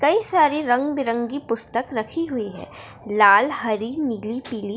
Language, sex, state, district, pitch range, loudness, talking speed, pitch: Hindi, female, Bihar, Darbhanga, 220-280 Hz, -21 LUFS, 140 wpm, 235 Hz